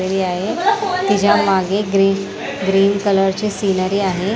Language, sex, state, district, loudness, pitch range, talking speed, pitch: Marathi, female, Maharashtra, Mumbai Suburban, -17 LUFS, 190-205 Hz, 125 wpm, 195 Hz